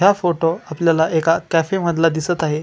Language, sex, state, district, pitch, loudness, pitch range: Marathi, male, Maharashtra, Chandrapur, 165 Hz, -18 LUFS, 160-175 Hz